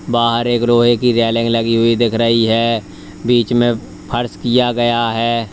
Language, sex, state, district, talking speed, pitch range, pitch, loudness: Hindi, male, Uttar Pradesh, Lalitpur, 175 wpm, 115-120 Hz, 115 Hz, -15 LUFS